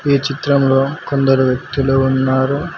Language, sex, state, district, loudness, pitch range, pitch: Telugu, male, Telangana, Mahabubabad, -15 LUFS, 135-140 Hz, 135 Hz